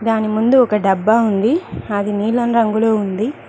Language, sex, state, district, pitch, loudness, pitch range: Telugu, female, Telangana, Mahabubabad, 220 Hz, -16 LUFS, 210-235 Hz